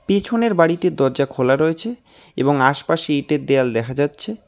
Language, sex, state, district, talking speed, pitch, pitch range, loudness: Bengali, male, West Bengal, Alipurduar, 145 wpm, 145 Hz, 135-180 Hz, -18 LUFS